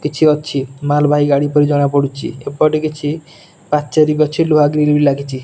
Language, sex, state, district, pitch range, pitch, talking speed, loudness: Odia, male, Odisha, Nuapada, 145-155 Hz, 150 Hz, 155 wpm, -15 LUFS